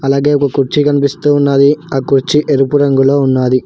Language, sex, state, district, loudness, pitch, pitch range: Telugu, male, Telangana, Hyderabad, -11 LUFS, 140 Hz, 135-145 Hz